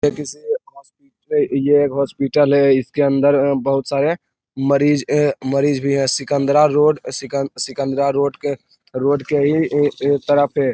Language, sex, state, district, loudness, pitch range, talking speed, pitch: Hindi, male, Bihar, Lakhisarai, -17 LUFS, 135-145 Hz, 160 wpm, 140 Hz